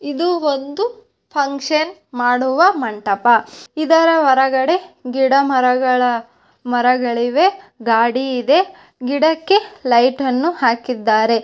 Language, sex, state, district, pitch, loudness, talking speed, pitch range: Kannada, female, Karnataka, Bellary, 265 Hz, -16 LUFS, 85 wpm, 245-325 Hz